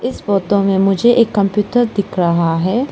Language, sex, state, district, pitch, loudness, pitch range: Hindi, female, Arunachal Pradesh, Lower Dibang Valley, 200 Hz, -15 LUFS, 195-235 Hz